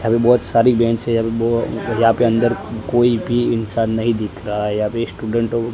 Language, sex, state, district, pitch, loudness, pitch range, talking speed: Hindi, male, Gujarat, Gandhinagar, 115 Hz, -18 LUFS, 110-115 Hz, 240 wpm